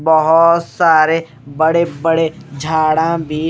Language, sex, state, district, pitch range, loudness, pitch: Hindi, male, Odisha, Malkangiri, 155-165 Hz, -14 LUFS, 160 Hz